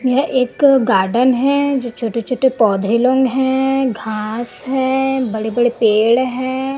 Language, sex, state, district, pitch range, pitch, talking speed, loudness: Hindi, female, Chhattisgarh, Raipur, 230-265 Hz, 255 Hz, 125 wpm, -16 LUFS